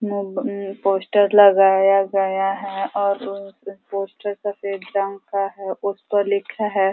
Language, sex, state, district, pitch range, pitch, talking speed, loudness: Hindi, female, Uttar Pradesh, Ghazipur, 195-200 Hz, 200 Hz, 120 wpm, -20 LUFS